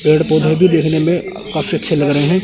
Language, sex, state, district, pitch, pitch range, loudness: Hindi, male, Chandigarh, Chandigarh, 160 Hz, 155-180 Hz, -14 LUFS